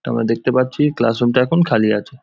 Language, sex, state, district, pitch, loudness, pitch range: Bengali, male, West Bengal, Jhargram, 125 Hz, -17 LUFS, 115-130 Hz